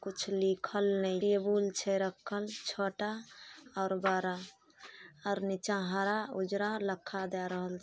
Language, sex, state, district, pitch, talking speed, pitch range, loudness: Maithili, female, Bihar, Samastipur, 195 Hz, 130 wpm, 190-205 Hz, -34 LUFS